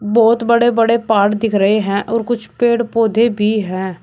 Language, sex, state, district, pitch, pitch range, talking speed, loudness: Hindi, male, Uttar Pradesh, Shamli, 225 Hz, 205-235 Hz, 195 wpm, -15 LUFS